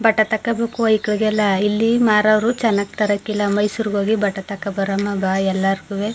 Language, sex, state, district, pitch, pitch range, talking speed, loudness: Kannada, female, Karnataka, Mysore, 210 Hz, 200-220 Hz, 125 wpm, -18 LUFS